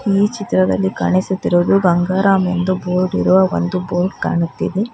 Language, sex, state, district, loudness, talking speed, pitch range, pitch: Kannada, female, Karnataka, Bangalore, -16 LUFS, 120 wpm, 175-190 Hz, 185 Hz